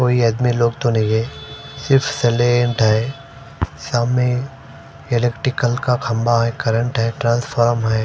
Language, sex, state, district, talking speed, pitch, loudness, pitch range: Hindi, male, Punjab, Fazilka, 135 wpm, 120 Hz, -18 LUFS, 115-135 Hz